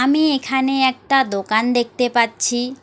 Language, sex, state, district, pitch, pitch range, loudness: Bengali, female, West Bengal, Alipurduar, 250 Hz, 240-270 Hz, -18 LUFS